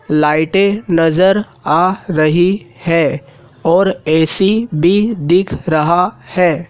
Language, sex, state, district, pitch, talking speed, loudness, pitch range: Hindi, male, Madhya Pradesh, Dhar, 170 Hz, 100 wpm, -14 LUFS, 155-190 Hz